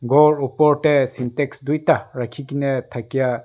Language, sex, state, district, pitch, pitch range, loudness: Nagamese, male, Nagaland, Dimapur, 140 Hz, 125-150 Hz, -19 LUFS